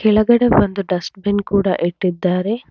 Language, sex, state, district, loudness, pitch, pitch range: Kannada, female, Karnataka, Bangalore, -17 LUFS, 200 Hz, 180-215 Hz